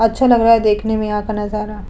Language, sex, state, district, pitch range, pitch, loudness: Hindi, female, Uttar Pradesh, Budaun, 210-225 Hz, 215 Hz, -16 LUFS